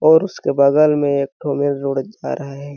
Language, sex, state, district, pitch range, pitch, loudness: Hindi, male, Chhattisgarh, Balrampur, 140-155 Hz, 145 Hz, -17 LUFS